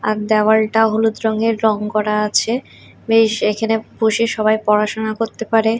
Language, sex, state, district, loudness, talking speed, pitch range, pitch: Bengali, female, Odisha, Khordha, -17 LUFS, 145 wpm, 215-225 Hz, 220 Hz